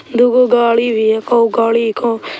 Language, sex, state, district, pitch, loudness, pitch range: Hindi, female, Bihar, Begusarai, 230 Hz, -13 LUFS, 225-240 Hz